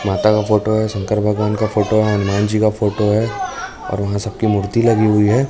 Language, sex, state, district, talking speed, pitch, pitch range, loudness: Hindi, male, Chhattisgarh, Raipur, 240 wpm, 105 Hz, 105-110 Hz, -17 LUFS